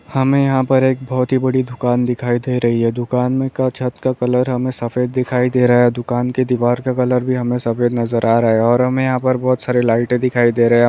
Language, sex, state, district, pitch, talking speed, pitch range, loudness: Hindi, male, Bihar, Darbhanga, 125 Hz, 265 wpm, 120-130 Hz, -16 LUFS